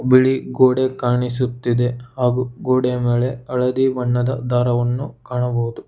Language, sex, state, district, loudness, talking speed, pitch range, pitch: Kannada, male, Karnataka, Bangalore, -19 LUFS, 100 wpm, 120-130 Hz, 125 Hz